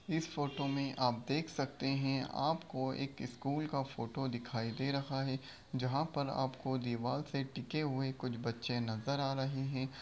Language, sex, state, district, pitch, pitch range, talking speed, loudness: Hindi, male, Bihar, Begusarai, 135 Hz, 130-140 Hz, 175 wpm, -38 LUFS